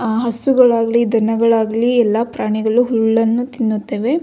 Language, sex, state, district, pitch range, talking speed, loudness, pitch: Kannada, female, Karnataka, Belgaum, 225-240 Hz, 100 wpm, -15 LUFS, 230 Hz